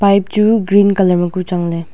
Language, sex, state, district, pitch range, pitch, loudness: Wancho, female, Arunachal Pradesh, Longding, 180-200 Hz, 190 Hz, -13 LUFS